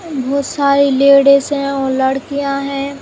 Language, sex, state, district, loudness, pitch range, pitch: Hindi, female, Uttar Pradesh, Jalaun, -14 LUFS, 275-280 Hz, 275 Hz